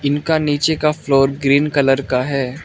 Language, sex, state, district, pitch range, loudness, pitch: Hindi, male, Arunachal Pradesh, Lower Dibang Valley, 135-150 Hz, -16 LUFS, 140 Hz